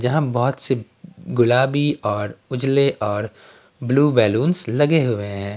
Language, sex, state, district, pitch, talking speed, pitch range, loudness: Hindi, male, Bihar, Patna, 125 Hz, 130 wpm, 105-140 Hz, -19 LUFS